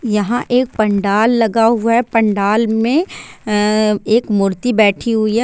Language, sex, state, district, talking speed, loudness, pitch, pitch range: Hindi, female, Bihar, Sitamarhi, 145 wpm, -15 LUFS, 220 Hz, 210-235 Hz